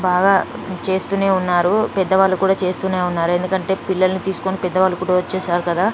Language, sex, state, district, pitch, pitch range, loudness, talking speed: Telugu, female, Telangana, Nalgonda, 185 Hz, 180-190 Hz, -18 LUFS, 150 wpm